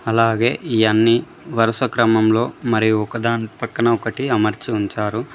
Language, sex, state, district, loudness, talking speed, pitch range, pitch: Telugu, male, Telangana, Mahabubabad, -18 LUFS, 110 wpm, 110-120 Hz, 115 Hz